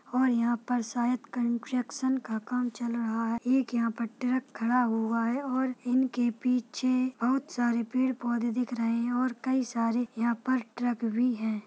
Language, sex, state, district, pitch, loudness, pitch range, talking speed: Hindi, female, Bihar, Saharsa, 245 Hz, -29 LUFS, 235-255 Hz, 180 wpm